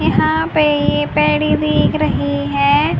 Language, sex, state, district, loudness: Hindi, female, Haryana, Charkhi Dadri, -15 LUFS